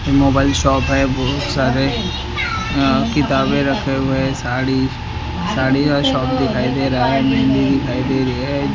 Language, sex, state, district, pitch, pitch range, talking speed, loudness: Hindi, male, Maharashtra, Mumbai Suburban, 130 Hz, 125-135 Hz, 155 wpm, -17 LUFS